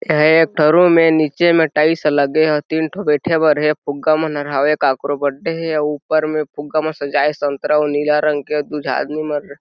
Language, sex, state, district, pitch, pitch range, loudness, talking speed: Chhattisgarhi, male, Chhattisgarh, Jashpur, 150 Hz, 145-155 Hz, -16 LUFS, 230 wpm